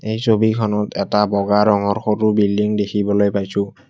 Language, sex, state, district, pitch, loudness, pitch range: Assamese, male, Assam, Kamrup Metropolitan, 105 Hz, -18 LUFS, 100-110 Hz